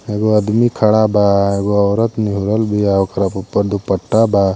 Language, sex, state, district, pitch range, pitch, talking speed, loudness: Bhojpuri, male, Uttar Pradesh, Ghazipur, 100-110 Hz, 105 Hz, 130 wpm, -15 LUFS